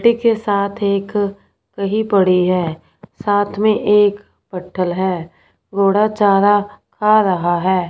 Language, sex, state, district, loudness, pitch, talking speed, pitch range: Hindi, female, Punjab, Fazilka, -16 LUFS, 200 Hz, 120 wpm, 185-210 Hz